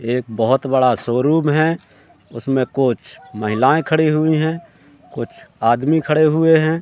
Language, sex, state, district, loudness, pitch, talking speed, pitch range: Hindi, male, Madhya Pradesh, Katni, -17 LUFS, 140 Hz, 140 wpm, 125-160 Hz